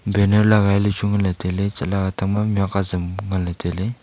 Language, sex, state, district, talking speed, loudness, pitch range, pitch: Wancho, male, Arunachal Pradesh, Longding, 180 wpm, -20 LUFS, 95-100 Hz, 100 Hz